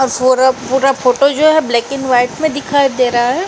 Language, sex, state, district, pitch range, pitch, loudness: Hindi, female, Uttar Pradesh, Jalaun, 250-285 Hz, 265 Hz, -13 LUFS